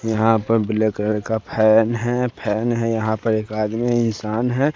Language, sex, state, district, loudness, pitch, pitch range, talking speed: Hindi, male, Bihar, West Champaran, -20 LUFS, 110 Hz, 110-115 Hz, 190 wpm